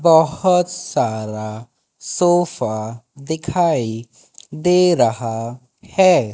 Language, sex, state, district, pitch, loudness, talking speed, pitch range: Hindi, male, Madhya Pradesh, Katni, 150 Hz, -18 LUFS, 65 wpm, 115-175 Hz